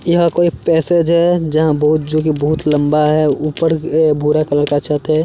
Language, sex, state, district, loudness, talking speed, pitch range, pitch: Hindi, male, Chandigarh, Chandigarh, -14 LUFS, 195 wpm, 150-165 Hz, 155 Hz